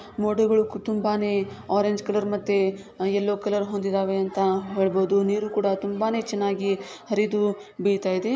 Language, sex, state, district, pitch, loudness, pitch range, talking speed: Kannada, female, Karnataka, Shimoga, 200 Hz, -24 LUFS, 195-210 Hz, 115 wpm